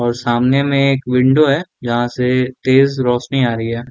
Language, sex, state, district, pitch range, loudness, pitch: Hindi, male, Jharkhand, Jamtara, 120-135 Hz, -15 LUFS, 125 Hz